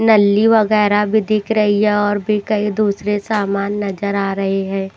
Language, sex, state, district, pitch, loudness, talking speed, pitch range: Hindi, female, Maharashtra, Washim, 205 Hz, -16 LUFS, 180 wpm, 200-215 Hz